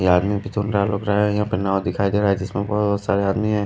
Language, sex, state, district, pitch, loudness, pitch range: Hindi, male, Delhi, New Delhi, 100 Hz, -21 LUFS, 100-105 Hz